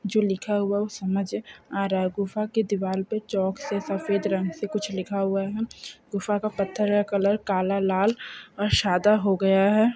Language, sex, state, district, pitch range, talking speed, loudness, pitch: Hindi, female, Andhra Pradesh, Guntur, 195-210 Hz, 200 wpm, -25 LUFS, 200 Hz